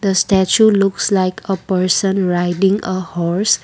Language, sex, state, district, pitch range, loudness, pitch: English, female, Assam, Kamrup Metropolitan, 185-195 Hz, -15 LUFS, 195 Hz